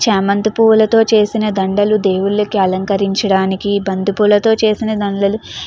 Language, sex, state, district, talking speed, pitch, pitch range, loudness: Telugu, female, Andhra Pradesh, Chittoor, 95 wpm, 205 Hz, 195-215 Hz, -14 LUFS